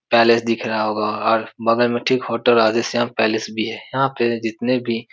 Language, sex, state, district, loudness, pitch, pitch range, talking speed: Hindi, male, Uttar Pradesh, Etah, -19 LUFS, 115 Hz, 110-120 Hz, 210 wpm